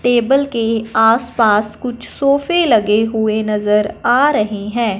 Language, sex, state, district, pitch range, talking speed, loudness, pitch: Hindi, female, Punjab, Fazilka, 215-245 Hz, 130 wpm, -15 LUFS, 225 Hz